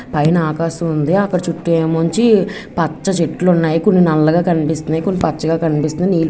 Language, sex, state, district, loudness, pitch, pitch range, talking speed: Telugu, female, Andhra Pradesh, Visakhapatnam, -15 LUFS, 165 Hz, 160-180 Hz, 145 wpm